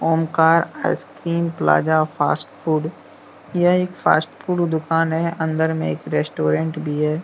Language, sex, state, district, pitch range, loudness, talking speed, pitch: Hindi, male, Jharkhand, Deoghar, 155-170 Hz, -20 LUFS, 135 wpm, 160 Hz